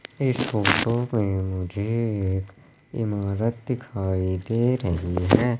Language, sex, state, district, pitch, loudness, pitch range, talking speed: Hindi, male, Madhya Pradesh, Katni, 110 Hz, -24 LUFS, 95-120 Hz, 105 wpm